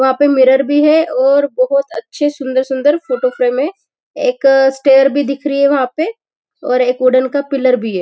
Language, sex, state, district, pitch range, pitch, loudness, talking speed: Hindi, female, Maharashtra, Nagpur, 260-290 Hz, 275 Hz, -13 LUFS, 210 wpm